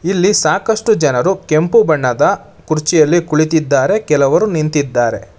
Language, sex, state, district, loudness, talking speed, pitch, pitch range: Kannada, male, Karnataka, Bangalore, -13 LUFS, 100 wpm, 155 Hz, 150-190 Hz